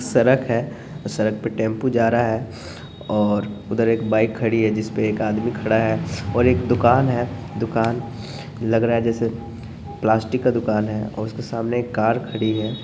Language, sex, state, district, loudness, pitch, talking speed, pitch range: Hindi, male, Bihar, Sitamarhi, -21 LUFS, 115 Hz, 185 wpm, 110-115 Hz